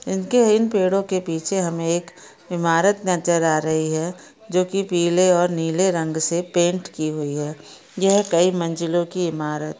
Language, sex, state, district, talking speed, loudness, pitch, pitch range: Hindi, female, Chhattisgarh, Sukma, 170 wpm, -20 LUFS, 175 Hz, 165-185 Hz